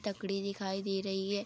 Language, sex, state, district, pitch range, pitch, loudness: Hindi, female, Bihar, Araria, 195-200 Hz, 195 Hz, -36 LUFS